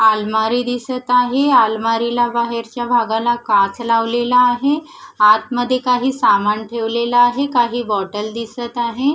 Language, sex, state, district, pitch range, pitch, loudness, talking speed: Marathi, female, Maharashtra, Gondia, 225-250 Hz, 240 Hz, -16 LUFS, 120 wpm